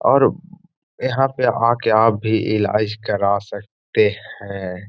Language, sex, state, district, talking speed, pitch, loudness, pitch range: Hindi, male, Bihar, Gaya, 125 wpm, 105 Hz, -19 LUFS, 100-115 Hz